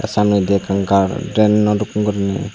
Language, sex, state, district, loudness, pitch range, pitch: Chakma, male, Tripura, Unakoti, -16 LUFS, 100-105 Hz, 105 Hz